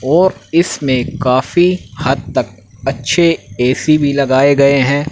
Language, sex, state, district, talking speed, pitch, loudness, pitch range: Hindi, male, Haryana, Rohtak, 130 wpm, 140 Hz, -13 LUFS, 130-155 Hz